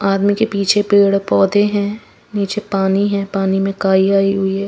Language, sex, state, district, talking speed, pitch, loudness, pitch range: Hindi, female, Himachal Pradesh, Shimla, 190 wpm, 195 Hz, -15 LUFS, 195-205 Hz